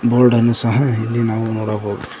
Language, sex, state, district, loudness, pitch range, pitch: Kannada, male, Karnataka, Koppal, -17 LUFS, 110-120 Hz, 115 Hz